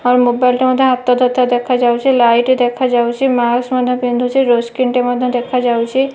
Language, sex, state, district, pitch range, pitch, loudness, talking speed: Odia, female, Odisha, Malkangiri, 245-255 Hz, 250 Hz, -14 LUFS, 195 wpm